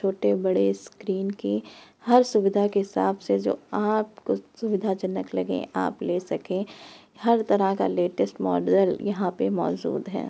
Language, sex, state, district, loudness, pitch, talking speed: Hindi, female, Uttar Pradesh, Etah, -25 LUFS, 195 Hz, 145 wpm